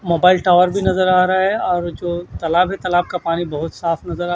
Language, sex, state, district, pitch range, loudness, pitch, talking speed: Hindi, male, Maharashtra, Washim, 170-185 Hz, -17 LUFS, 175 Hz, 250 wpm